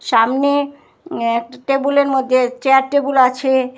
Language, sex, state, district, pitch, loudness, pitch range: Bengali, female, Assam, Hailakandi, 265 Hz, -16 LUFS, 255-280 Hz